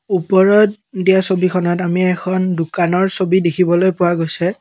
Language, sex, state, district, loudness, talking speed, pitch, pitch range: Assamese, male, Assam, Kamrup Metropolitan, -14 LUFS, 130 wpm, 185 Hz, 175-190 Hz